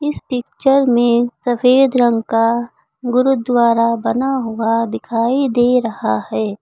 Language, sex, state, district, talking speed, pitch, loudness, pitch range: Hindi, female, Uttar Pradesh, Lucknow, 120 wpm, 240 Hz, -16 LUFS, 230-255 Hz